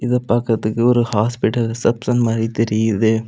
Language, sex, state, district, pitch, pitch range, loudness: Tamil, male, Tamil Nadu, Kanyakumari, 115 Hz, 110-120 Hz, -18 LUFS